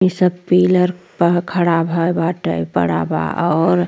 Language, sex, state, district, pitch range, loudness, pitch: Bhojpuri, female, Uttar Pradesh, Ghazipur, 165-180 Hz, -17 LUFS, 175 Hz